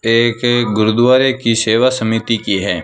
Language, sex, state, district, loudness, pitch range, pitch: Hindi, male, Rajasthan, Bikaner, -14 LUFS, 110-120 Hz, 115 Hz